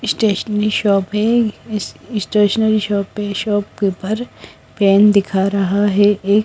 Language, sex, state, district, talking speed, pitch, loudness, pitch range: Hindi, female, Punjab, Kapurthala, 140 wpm, 205 Hz, -16 LUFS, 200-215 Hz